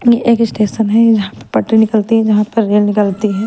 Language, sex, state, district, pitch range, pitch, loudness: Hindi, female, Maharashtra, Mumbai Suburban, 210-225 Hz, 220 Hz, -13 LUFS